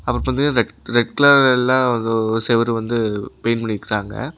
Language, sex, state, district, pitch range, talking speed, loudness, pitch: Tamil, male, Tamil Nadu, Namakkal, 110-130 Hz, 110 wpm, -17 LUFS, 115 Hz